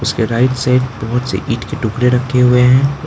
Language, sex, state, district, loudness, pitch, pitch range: Hindi, male, Arunachal Pradesh, Lower Dibang Valley, -14 LUFS, 125 Hz, 120-130 Hz